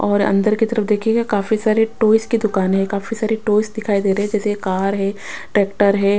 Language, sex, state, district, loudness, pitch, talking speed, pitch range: Hindi, female, Chhattisgarh, Raipur, -18 LUFS, 210 Hz, 225 wpm, 200-220 Hz